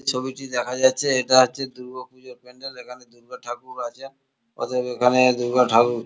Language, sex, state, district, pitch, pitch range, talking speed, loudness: Bengali, male, West Bengal, Kolkata, 125 Hz, 125-130 Hz, 160 wpm, -21 LUFS